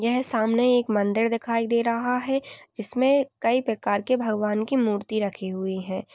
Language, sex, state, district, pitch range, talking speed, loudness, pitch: Hindi, female, Uttar Pradesh, Jyotiba Phule Nagar, 210-250 Hz, 175 wpm, -24 LUFS, 230 Hz